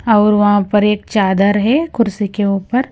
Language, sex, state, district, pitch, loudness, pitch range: Hindi, female, Punjab, Kapurthala, 210 Hz, -14 LUFS, 205-225 Hz